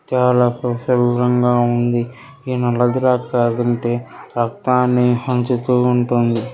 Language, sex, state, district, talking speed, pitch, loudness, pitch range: Telugu, male, Telangana, Karimnagar, 100 wpm, 125 Hz, -17 LUFS, 120-125 Hz